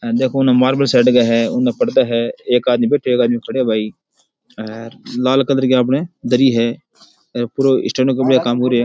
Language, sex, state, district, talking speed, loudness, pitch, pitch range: Rajasthani, male, Rajasthan, Churu, 175 wpm, -15 LUFS, 130 Hz, 120-135 Hz